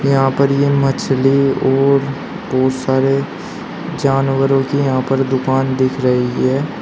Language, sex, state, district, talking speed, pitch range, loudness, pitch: Hindi, male, Uttar Pradesh, Shamli, 130 wpm, 130-140 Hz, -15 LUFS, 135 Hz